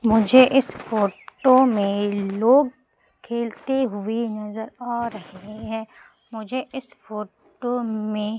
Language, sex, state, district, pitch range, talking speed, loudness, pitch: Hindi, female, Madhya Pradesh, Umaria, 210-255 Hz, 105 wpm, -22 LUFS, 225 Hz